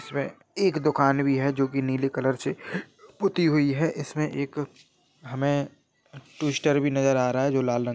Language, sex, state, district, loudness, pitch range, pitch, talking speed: Hindi, male, Jharkhand, Sahebganj, -25 LUFS, 135-150 Hz, 140 Hz, 190 wpm